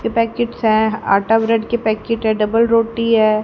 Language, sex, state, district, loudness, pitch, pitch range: Hindi, female, Haryana, Rohtak, -16 LUFS, 225 Hz, 220-230 Hz